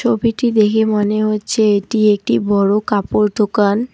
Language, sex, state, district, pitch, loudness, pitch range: Bengali, female, West Bengal, Alipurduar, 215 Hz, -15 LUFS, 205-220 Hz